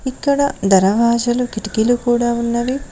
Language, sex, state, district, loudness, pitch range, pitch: Telugu, female, Telangana, Mahabubabad, -16 LUFS, 225-255 Hz, 240 Hz